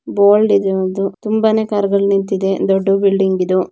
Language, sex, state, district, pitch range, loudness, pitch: Kannada, female, Karnataka, Bijapur, 195-205 Hz, -15 LUFS, 195 Hz